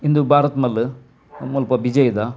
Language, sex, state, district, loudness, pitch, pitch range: Tulu, male, Karnataka, Dakshina Kannada, -18 LUFS, 135 Hz, 125-145 Hz